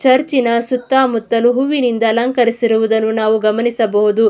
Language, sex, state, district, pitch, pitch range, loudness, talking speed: Kannada, female, Karnataka, Mysore, 235 Hz, 220-255 Hz, -14 LUFS, 100 wpm